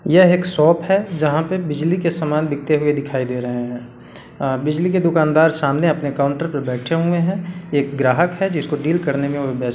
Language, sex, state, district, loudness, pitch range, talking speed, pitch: Hindi, male, Bihar, Sitamarhi, -18 LUFS, 140-170 Hz, 210 wpm, 150 Hz